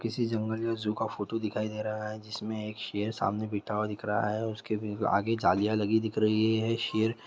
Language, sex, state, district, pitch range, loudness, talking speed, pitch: Hindi, male, Bihar, East Champaran, 105-110 Hz, -30 LUFS, 215 wpm, 110 Hz